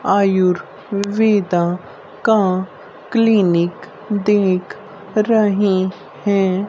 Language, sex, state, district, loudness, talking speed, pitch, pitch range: Hindi, female, Haryana, Rohtak, -17 LUFS, 55 wpm, 200 Hz, 185-210 Hz